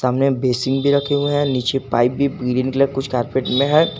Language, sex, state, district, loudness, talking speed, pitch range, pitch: Hindi, male, Jharkhand, Garhwa, -18 LUFS, 255 wpm, 125-140 Hz, 135 Hz